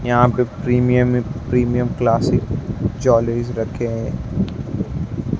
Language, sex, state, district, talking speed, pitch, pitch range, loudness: Hindi, male, Maharashtra, Mumbai Suburban, 90 wpm, 125 Hz, 120-125 Hz, -19 LUFS